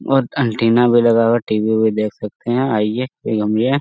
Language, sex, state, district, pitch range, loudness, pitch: Hindi, male, Bihar, Jamui, 110-120 Hz, -17 LUFS, 115 Hz